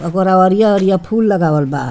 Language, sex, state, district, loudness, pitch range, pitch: Bhojpuri, female, Bihar, Muzaffarpur, -13 LUFS, 170-200 Hz, 190 Hz